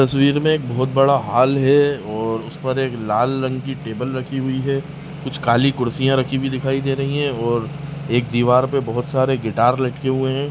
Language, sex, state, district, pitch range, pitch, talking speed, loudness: Kumaoni, male, Uttarakhand, Tehri Garhwal, 125-140 Hz, 135 Hz, 210 wpm, -19 LUFS